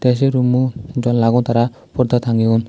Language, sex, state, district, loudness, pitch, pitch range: Chakma, male, Tripura, Dhalai, -17 LUFS, 125 Hz, 115-125 Hz